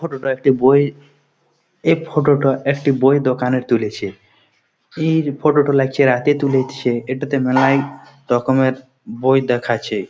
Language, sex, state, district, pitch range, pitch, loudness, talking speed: Bengali, male, West Bengal, Jhargram, 130-145 Hz, 135 Hz, -17 LUFS, 135 wpm